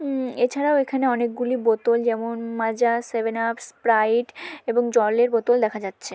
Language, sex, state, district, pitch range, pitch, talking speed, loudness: Bengali, female, West Bengal, Malda, 230-245 Hz, 235 Hz, 145 wpm, -22 LUFS